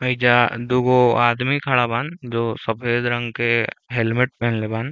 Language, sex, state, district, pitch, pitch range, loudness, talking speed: Bhojpuri, male, Uttar Pradesh, Deoria, 120 Hz, 115-125 Hz, -20 LUFS, 145 wpm